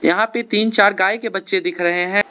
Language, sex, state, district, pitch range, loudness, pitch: Hindi, male, Arunachal Pradesh, Lower Dibang Valley, 180-220 Hz, -17 LUFS, 200 Hz